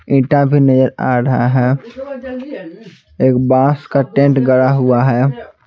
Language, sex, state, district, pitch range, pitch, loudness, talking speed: Hindi, male, Bihar, Patna, 130-145 Hz, 135 Hz, -13 LUFS, 140 wpm